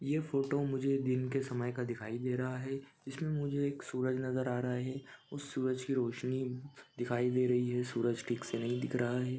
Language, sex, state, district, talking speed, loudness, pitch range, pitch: Hindi, male, Chhattisgarh, Bilaspur, 215 wpm, -36 LUFS, 125-135 Hz, 130 Hz